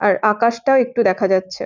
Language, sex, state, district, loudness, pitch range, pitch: Bengali, female, West Bengal, Jhargram, -17 LUFS, 190-235 Hz, 210 Hz